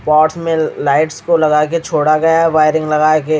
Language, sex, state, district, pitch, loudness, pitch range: Hindi, male, Chhattisgarh, Raipur, 155 Hz, -13 LUFS, 155-165 Hz